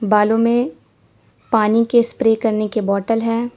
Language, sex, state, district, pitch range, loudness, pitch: Hindi, female, Uttar Pradesh, Lalitpur, 215-235 Hz, -17 LUFS, 225 Hz